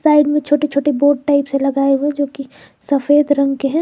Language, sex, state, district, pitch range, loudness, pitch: Hindi, female, Jharkhand, Garhwa, 275-295 Hz, -15 LUFS, 285 Hz